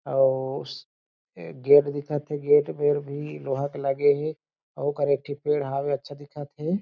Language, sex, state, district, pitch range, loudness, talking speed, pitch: Chhattisgarhi, male, Chhattisgarh, Jashpur, 140-145 Hz, -25 LUFS, 175 wpm, 145 Hz